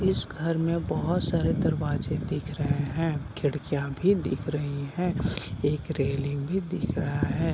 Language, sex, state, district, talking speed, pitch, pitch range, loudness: Hindi, male, Bihar, Sitamarhi, 165 wpm, 145 Hz, 140-165 Hz, -28 LUFS